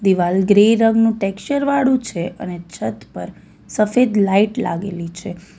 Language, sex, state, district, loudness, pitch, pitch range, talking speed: Gujarati, female, Gujarat, Valsad, -17 LUFS, 200 Hz, 180-225 Hz, 140 wpm